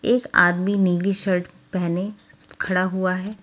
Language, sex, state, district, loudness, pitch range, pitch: Hindi, female, Delhi, New Delhi, -21 LUFS, 180-200 Hz, 185 Hz